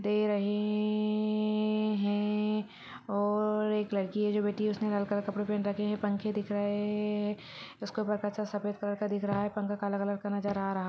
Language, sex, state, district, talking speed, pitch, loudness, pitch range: Hindi, female, Chhattisgarh, Balrampur, 205 wpm, 210 Hz, -32 LUFS, 205-210 Hz